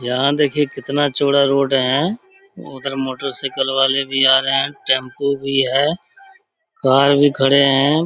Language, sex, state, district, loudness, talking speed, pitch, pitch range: Hindi, male, Bihar, Supaul, -16 LUFS, 140 wpm, 140 Hz, 135-145 Hz